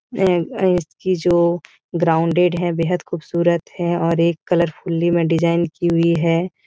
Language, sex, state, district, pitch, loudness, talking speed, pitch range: Hindi, female, Bihar, Jahanabad, 170 Hz, -18 LUFS, 145 wpm, 165-175 Hz